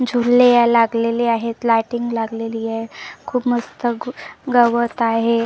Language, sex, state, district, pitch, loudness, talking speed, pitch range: Marathi, female, Maharashtra, Gondia, 235 Hz, -18 LUFS, 120 wpm, 230-240 Hz